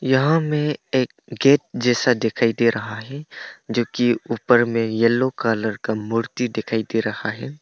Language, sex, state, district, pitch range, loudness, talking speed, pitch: Hindi, male, Arunachal Pradesh, Papum Pare, 115-130 Hz, -21 LUFS, 165 wpm, 120 Hz